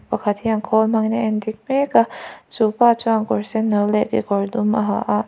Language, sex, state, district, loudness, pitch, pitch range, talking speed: Mizo, female, Mizoram, Aizawl, -19 LUFS, 220 Hz, 210-225 Hz, 215 wpm